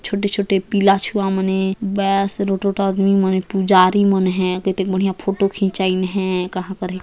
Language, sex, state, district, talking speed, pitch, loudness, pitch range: Hindi, female, Chhattisgarh, Jashpur, 190 wpm, 195 Hz, -18 LUFS, 190-195 Hz